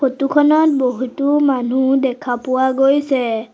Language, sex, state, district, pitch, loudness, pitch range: Assamese, female, Assam, Sonitpur, 265 Hz, -16 LUFS, 255-280 Hz